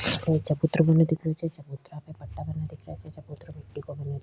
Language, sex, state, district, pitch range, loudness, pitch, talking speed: Rajasthani, female, Rajasthan, Churu, 140-160 Hz, -25 LUFS, 150 Hz, 255 wpm